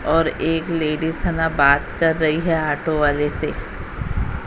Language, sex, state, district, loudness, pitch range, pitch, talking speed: Hindi, female, Haryana, Jhajjar, -20 LUFS, 150-165 Hz, 160 Hz, 160 wpm